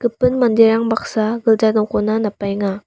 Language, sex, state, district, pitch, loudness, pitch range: Garo, female, Meghalaya, West Garo Hills, 220 Hz, -16 LUFS, 210-230 Hz